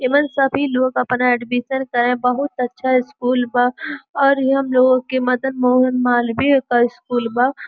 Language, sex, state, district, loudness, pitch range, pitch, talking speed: Bhojpuri, female, Uttar Pradesh, Gorakhpur, -17 LUFS, 245-265 Hz, 255 Hz, 150 wpm